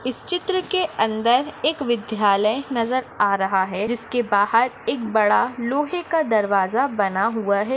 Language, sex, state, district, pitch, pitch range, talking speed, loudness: Hindi, female, Maharashtra, Nagpur, 230 Hz, 205-265 Hz, 155 wpm, -21 LUFS